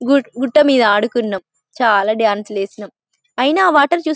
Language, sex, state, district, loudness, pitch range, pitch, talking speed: Telugu, female, Telangana, Karimnagar, -15 LUFS, 205-280 Hz, 235 Hz, 160 wpm